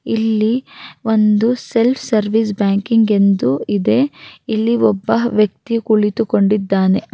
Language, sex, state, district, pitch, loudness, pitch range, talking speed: Kannada, female, Karnataka, Raichur, 220 Hz, -16 LUFS, 205-230 Hz, 90 wpm